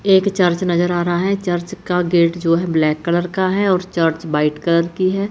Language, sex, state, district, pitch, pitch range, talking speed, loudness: Hindi, female, Chandigarh, Chandigarh, 175 Hz, 170-185 Hz, 235 wpm, -17 LUFS